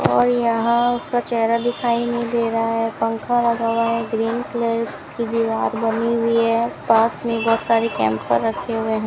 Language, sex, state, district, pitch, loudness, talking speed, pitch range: Hindi, female, Rajasthan, Bikaner, 230 Hz, -20 LUFS, 185 wpm, 225-235 Hz